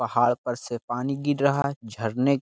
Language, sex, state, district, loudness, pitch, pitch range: Hindi, male, Bihar, Jamui, -26 LUFS, 125 Hz, 120-140 Hz